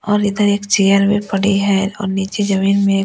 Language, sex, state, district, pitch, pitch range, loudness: Hindi, female, Delhi, New Delhi, 200 Hz, 195-205 Hz, -15 LUFS